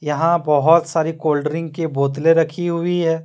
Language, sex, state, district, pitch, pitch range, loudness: Hindi, male, Jharkhand, Deoghar, 165 Hz, 150-170 Hz, -18 LUFS